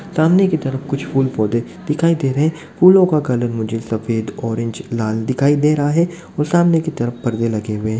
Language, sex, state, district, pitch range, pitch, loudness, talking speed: Hindi, male, Bihar, Muzaffarpur, 115-160 Hz, 135 Hz, -17 LUFS, 210 wpm